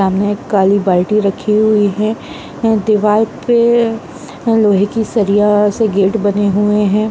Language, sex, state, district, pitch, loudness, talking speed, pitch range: Hindi, female, Bihar, Saran, 210 Hz, -13 LUFS, 175 wpm, 205-220 Hz